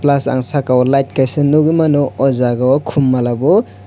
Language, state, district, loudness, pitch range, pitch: Kokborok, Tripura, West Tripura, -14 LUFS, 125-145 Hz, 135 Hz